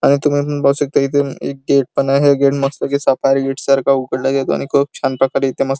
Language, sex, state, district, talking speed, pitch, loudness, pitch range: Marathi, male, Maharashtra, Chandrapur, 250 wpm, 140 Hz, -16 LUFS, 135-140 Hz